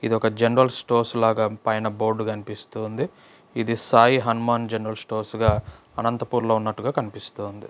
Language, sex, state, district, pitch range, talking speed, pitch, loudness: Telugu, male, Andhra Pradesh, Anantapur, 110-115 Hz, 125 wpm, 110 Hz, -23 LUFS